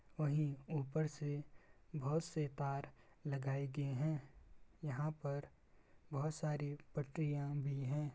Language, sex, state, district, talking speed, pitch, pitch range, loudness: Hindi, male, Bihar, Samastipur, 120 wpm, 145 Hz, 140-150 Hz, -42 LUFS